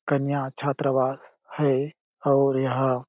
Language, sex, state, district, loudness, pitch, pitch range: Hindi, male, Chhattisgarh, Balrampur, -25 LUFS, 135 Hz, 130-140 Hz